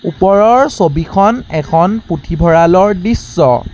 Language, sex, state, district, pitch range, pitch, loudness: Assamese, male, Assam, Sonitpur, 165-210 Hz, 185 Hz, -11 LUFS